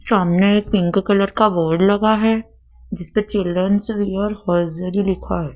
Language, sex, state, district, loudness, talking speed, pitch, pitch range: Hindi, female, Madhya Pradesh, Dhar, -18 LUFS, 150 wpm, 195 Hz, 175-210 Hz